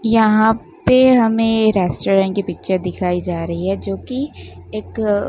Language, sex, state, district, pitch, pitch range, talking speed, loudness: Hindi, female, Gujarat, Gandhinagar, 210 Hz, 185-225 Hz, 145 wpm, -15 LUFS